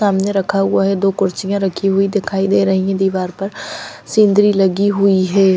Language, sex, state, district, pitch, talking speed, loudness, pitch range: Hindi, female, Punjab, Fazilka, 195 Hz, 195 wpm, -15 LUFS, 195-200 Hz